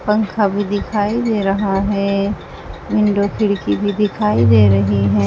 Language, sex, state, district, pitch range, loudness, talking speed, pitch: Hindi, female, Uttar Pradesh, Saharanpur, 185-210 Hz, -16 LUFS, 150 wpm, 200 Hz